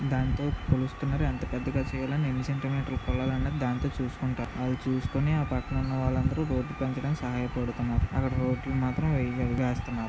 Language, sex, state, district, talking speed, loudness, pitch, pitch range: Telugu, male, Andhra Pradesh, Visakhapatnam, 145 wpm, -30 LUFS, 130 Hz, 125-135 Hz